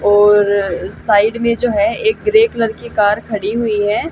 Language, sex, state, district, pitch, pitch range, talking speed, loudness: Hindi, female, Haryana, Jhajjar, 220 Hz, 205-235 Hz, 190 wpm, -14 LUFS